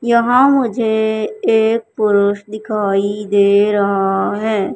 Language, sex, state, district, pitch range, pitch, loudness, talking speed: Hindi, male, Madhya Pradesh, Katni, 200-225 Hz, 215 Hz, -15 LUFS, 100 wpm